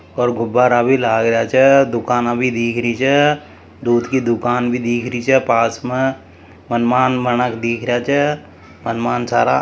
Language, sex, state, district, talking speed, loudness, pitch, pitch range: Marwari, male, Rajasthan, Nagaur, 170 wpm, -16 LUFS, 120 Hz, 115-130 Hz